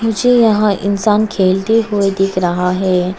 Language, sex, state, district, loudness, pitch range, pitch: Hindi, female, Arunachal Pradesh, Papum Pare, -14 LUFS, 185-215 Hz, 200 Hz